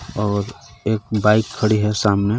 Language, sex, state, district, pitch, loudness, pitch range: Hindi, male, Jharkhand, Garhwa, 105 Hz, -19 LUFS, 105-110 Hz